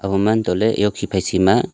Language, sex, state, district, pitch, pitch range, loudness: Wancho, male, Arunachal Pradesh, Longding, 100 Hz, 95-110 Hz, -18 LUFS